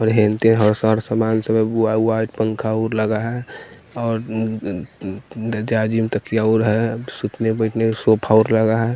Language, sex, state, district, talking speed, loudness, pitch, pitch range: Hindi, male, Bihar, West Champaran, 180 wpm, -19 LUFS, 110 Hz, 110-115 Hz